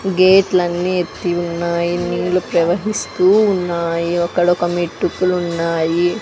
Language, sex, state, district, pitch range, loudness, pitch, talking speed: Telugu, female, Andhra Pradesh, Sri Satya Sai, 170-185 Hz, -17 LUFS, 175 Hz, 105 wpm